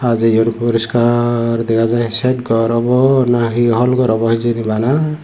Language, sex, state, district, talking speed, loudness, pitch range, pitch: Chakma, male, Tripura, Dhalai, 150 wpm, -14 LUFS, 115-125 Hz, 120 Hz